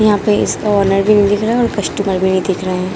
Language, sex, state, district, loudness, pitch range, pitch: Hindi, female, Jharkhand, Jamtara, -14 LUFS, 190-210 Hz, 200 Hz